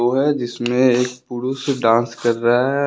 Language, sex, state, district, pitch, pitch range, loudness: Hindi, male, Bihar, West Champaran, 125 Hz, 120-130 Hz, -18 LUFS